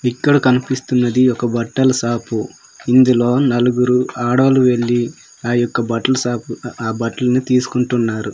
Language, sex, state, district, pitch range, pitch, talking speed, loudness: Telugu, male, Andhra Pradesh, Manyam, 120-130 Hz, 125 Hz, 115 wpm, -16 LUFS